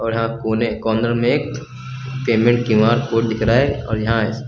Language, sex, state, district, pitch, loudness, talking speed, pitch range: Hindi, male, Uttar Pradesh, Lucknow, 115 Hz, -18 LUFS, 200 wpm, 110-120 Hz